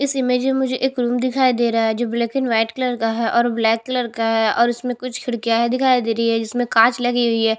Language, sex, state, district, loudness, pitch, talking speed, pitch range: Hindi, female, Chhattisgarh, Bastar, -19 LUFS, 240 Hz, 285 wpm, 230-255 Hz